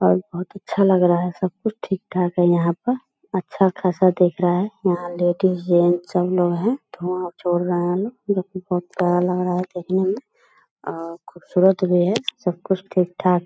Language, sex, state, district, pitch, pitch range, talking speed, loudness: Hindi, female, Bihar, Purnia, 180 Hz, 175-190 Hz, 200 wpm, -21 LUFS